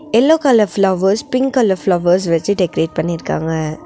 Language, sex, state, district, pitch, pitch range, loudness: Tamil, female, Tamil Nadu, Nilgiris, 190 Hz, 170-235 Hz, -15 LUFS